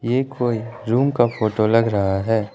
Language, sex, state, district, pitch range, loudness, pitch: Hindi, male, Arunachal Pradesh, Lower Dibang Valley, 110-120 Hz, -20 LUFS, 115 Hz